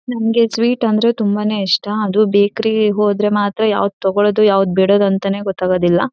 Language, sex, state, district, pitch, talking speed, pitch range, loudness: Kannada, female, Karnataka, Shimoga, 205 Hz, 145 wpm, 195-220 Hz, -15 LUFS